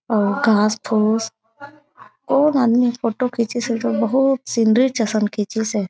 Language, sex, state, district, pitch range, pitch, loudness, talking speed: Chhattisgarhi, female, Chhattisgarh, Raigarh, 215-250 Hz, 230 Hz, -18 LUFS, 145 wpm